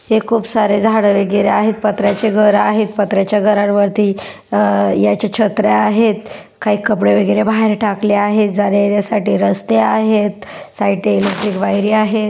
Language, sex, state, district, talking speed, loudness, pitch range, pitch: Marathi, female, Maharashtra, Pune, 150 wpm, -14 LUFS, 195-215 Hz, 205 Hz